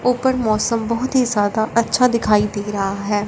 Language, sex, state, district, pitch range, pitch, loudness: Hindi, male, Punjab, Fazilka, 205-245 Hz, 220 Hz, -18 LUFS